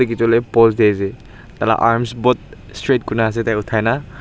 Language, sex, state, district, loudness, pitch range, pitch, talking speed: Nagamese, male, Nagaland, Dimapur, -17 LUFS, 110-125 Hz, 115 Hz, 185 wpm